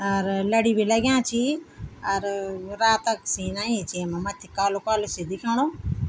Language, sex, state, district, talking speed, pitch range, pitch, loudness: Garhwali, female, Uttarakhand, Tehri Garhwal, 165 wpm, 195-225 Hz, 205 Hz, -25 LUFS